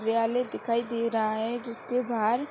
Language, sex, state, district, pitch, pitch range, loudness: Hindi, female, Uttar Pradesh, Hamirpur, 230 Hz, 225-240 Hz, -28 LUFS